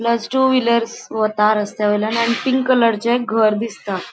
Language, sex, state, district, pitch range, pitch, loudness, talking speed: Konkani, female, Goa, North and South Goa, 215-235 Hz, 230 Hz, -17 LUFS, 175 wpm